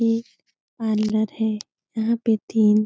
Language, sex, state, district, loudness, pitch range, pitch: Hindi, female, Bihar, Supaul, -23 LUFS, 215-225 Hz, 220 Hz